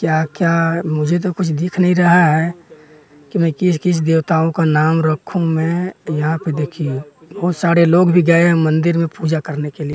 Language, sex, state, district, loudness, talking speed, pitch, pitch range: Hindi, male, Bihar, West Champaran, -16 LUFS, 200 wpm, 165 Hz, 155-175 Hz